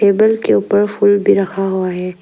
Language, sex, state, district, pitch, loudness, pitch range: Hindi, female, Arunachal Pradesh, Lower Dibang Valley, 200 Hz, -14 LUFS, 190-205 Hz